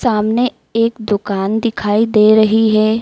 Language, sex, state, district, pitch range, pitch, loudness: Hindi, female, Madhya Pradesh, Dhar, 210-230 Hz, 220 Hz, -14 LUFS